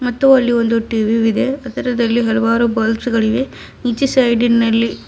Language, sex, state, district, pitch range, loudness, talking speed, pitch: Kannada, female, Karnataka, Bidar, 225-250 Hz, -15 LUFS, 155 wpm, 235 Hz